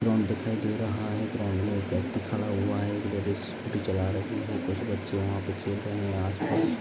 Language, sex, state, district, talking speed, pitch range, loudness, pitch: Hindi, male, Maharashtra, Aurangabad, 220 wpm, 100-110 Hz, -30 LUFS, 105 Hz